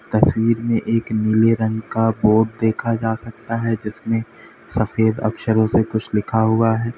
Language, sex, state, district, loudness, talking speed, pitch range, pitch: Hindi, male, Uttar Pradesh, Lalitpur, -19 LUFS, 165 wpm, 110-115 Hz, 110 Hz